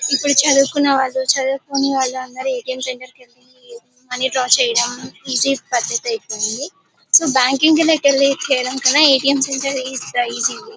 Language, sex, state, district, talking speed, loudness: Telugu, male, Andhra Pradesh, Anantapur, 175 wpm, -16 LUFS